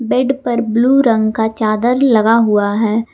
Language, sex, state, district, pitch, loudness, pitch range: Hindi, female, Jharkhand, Garhwa, 230 Hz, -13 LUFS, 220-245 Hz